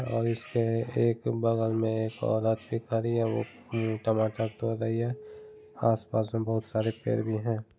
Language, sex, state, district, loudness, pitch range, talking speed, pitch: Hindi, male, Bihar, Muzaffarpur, -29 LUFS, 110-115 Hz, 195 wpm, 115 Hz